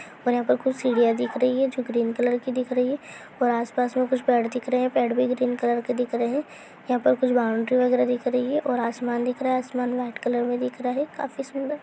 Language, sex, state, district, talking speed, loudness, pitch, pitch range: Hindi, female, West Bengal, Jhargram, 275 wpm, -24 LUFS, 250 Hz, 245-255 Hz